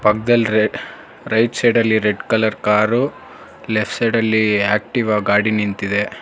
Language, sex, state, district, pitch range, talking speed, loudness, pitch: Kannada, male, Karnataka, Bangalore, 105-115 Hz, 95 wpm, -17 LUFS, 110 Hz